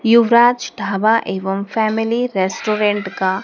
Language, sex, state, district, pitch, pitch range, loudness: Hindi, female, Madhya Pradesh, Dhar, 215 Hz, 195-230 Hz, -17 LUFS